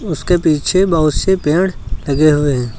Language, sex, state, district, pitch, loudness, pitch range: Hindi, male, Uttar Pradesh, Lucknow, 155 Hz, -14 LUFS, 145-185 Hz